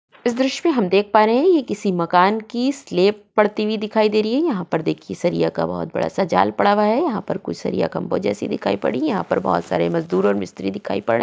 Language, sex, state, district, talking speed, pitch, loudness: Hindi, female, Maharashtra, Chandrapur, 265 wpm, 205 Hz, -20 LUFS